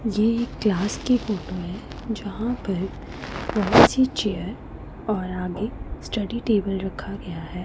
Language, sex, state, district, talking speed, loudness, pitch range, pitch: Hindi, female, Punjab, Pathankot, 140 wpm, -24 LUFS, 190-225 Hz, 205 Hz